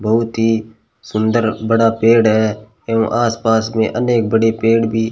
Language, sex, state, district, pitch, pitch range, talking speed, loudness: Hindi, male, Rajasthan, Bikaner, 115 Hz, 110-115 Hz, 150 wpm, -15 LUFS